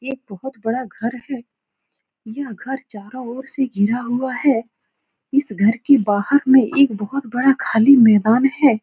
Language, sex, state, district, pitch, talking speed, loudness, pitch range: Hindi, female, Uttar Pradesh, Etah, 250 Hz, 170 wpm, -17 LUFS, 225-270 Hz